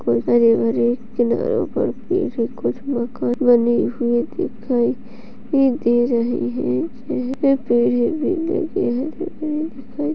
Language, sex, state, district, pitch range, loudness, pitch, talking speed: Hindi, female, Uttarakhand, Uttarkashi, 230-280 Hz, -20 LUFS, 240 Hz, 105 wpm